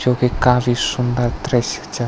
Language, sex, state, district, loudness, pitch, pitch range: Garhwali, male, Uttarakhand, Tehri Garhwal, -18 LUFS, 125 Hz, 120-125 Hz